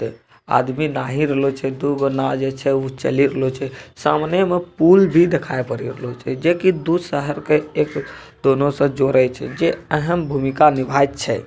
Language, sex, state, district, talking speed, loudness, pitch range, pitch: Angika, male, Bihar, Bhagalpur, 205 wpm, -18 LUFS, 135-160 Hz, 140 Hz